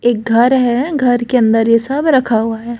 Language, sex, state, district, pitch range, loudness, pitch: Hindi, female, Chhattisgarh, Raipur, 230-255 Hz, -13 LUFS, 240 Hz